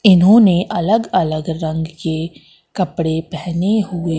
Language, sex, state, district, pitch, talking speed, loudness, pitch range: Hindi, female, Madhya Pradesh, Katni, 170 Hz, 115 wpm, -16 LUFS, 160-185 Hz